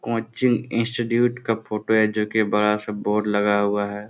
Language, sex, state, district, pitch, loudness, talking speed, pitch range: Hindi, male, Bihar, Supaul, 105 Hz, -22 LUFS, 175 wpm, 105-115 Hz